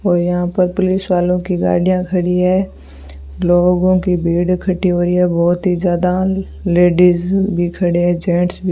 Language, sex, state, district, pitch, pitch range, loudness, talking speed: Hindi, female, Rajasthan, Bikaner, 180 Hz, 175-185 Hz, -15 LUFS, 170 wpm